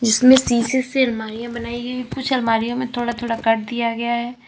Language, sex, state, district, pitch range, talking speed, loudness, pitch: Hindi, female, Uttar Pradesh, Lalitpur, 230-250 Hz, 215 wpm, -19 LUFS, 235 Hz